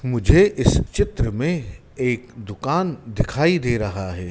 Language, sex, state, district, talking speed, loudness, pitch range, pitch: Hindi, male, Madhya Pradesh, Dhar, 140 wpm, -21 LUFS, 110-140 Hz, 120 Hz